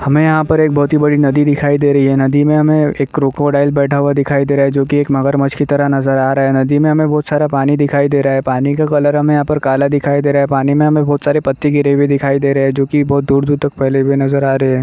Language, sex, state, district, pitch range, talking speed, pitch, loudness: Hindi, male, Uttar Pradesh, Jalaun, 135-145 Hz, 305 wpm, 140 Hz, -13 LUFS